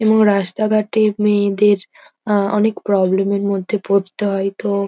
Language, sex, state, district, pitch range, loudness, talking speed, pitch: Bengali, female, West Bengal, North 24 Parganas, 200-210 Hz, -17 LUFS, 135 wpm, 205 Hz